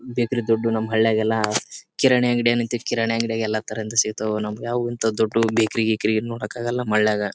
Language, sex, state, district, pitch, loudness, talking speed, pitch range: Kannada, male, Karnataka, Bijapur, 110 Hz, -22 LUFS, 170 wpm, 110-120 Hz